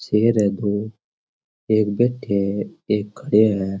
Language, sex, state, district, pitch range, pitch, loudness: Rajasthani, male, Rajasthan, Churu, 100-110 Hz, 105 Hz, -20 LUFS